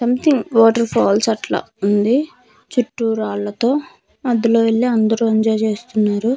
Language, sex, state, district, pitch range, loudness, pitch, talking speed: Telugu, female, Andhra Pradesh, Manyam, 220-245 Hz, -17 LUFS, 225 Hz, 120 wpm